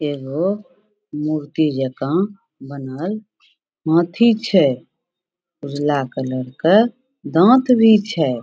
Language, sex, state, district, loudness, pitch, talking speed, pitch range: Maithili, female, Bihar, Samastipur, -18 LUFS, 170 Hz, 85 wpm, 140-210 Hz